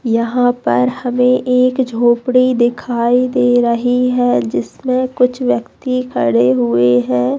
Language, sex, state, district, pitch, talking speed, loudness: Hindi, female, Bihar, Jamui, 245 Hz, 120 wpm, -14 LUFS